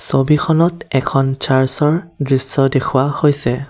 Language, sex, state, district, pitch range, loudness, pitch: Assamese, male, Assam, Kamrup Metropolitan, 135-150 Hz, -15 LUFS, 135 Hz